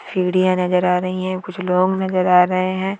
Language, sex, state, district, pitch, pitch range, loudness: Marwari, female, Rajasthan, Churu, 185 Hz, 180-185 Hz, -18 LUFS